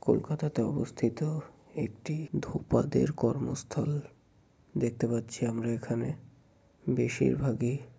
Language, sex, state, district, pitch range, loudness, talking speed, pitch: Bengali, male, West Bengal, Kolkata, 115-145 Hz, -32 LUFS, 75 wpm, 120 Hz